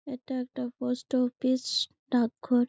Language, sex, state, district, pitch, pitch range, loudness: Bengali, female, West Bengal, Malda, 250 Hz, 245-255 Hz, -30 LUFS